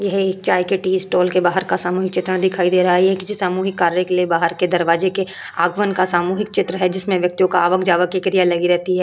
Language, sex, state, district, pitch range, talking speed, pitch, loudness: Hindi, female, Uttar Pradesh, Hamirpur, 180-190 Hz, 265 wpm, 185 Hz, -18 LUFS